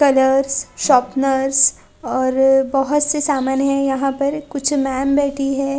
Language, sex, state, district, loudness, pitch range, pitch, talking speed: Hindi, female, Chhattisgarh, Kabirdham, -17 LUFS, 270-280 Hz, 275 Hz, 135 wpm